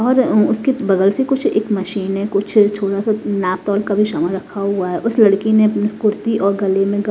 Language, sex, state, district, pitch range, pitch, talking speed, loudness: Hindi, female, Himachal Pradesh, Shimla, 200-215 Hz, 205 Hz, 220 wpm, -16 LUFS